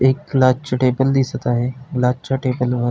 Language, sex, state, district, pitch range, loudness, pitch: Marathi, male, Maharashtra, Pune, 125-135 Hz, -18 LUFS, 130 Hz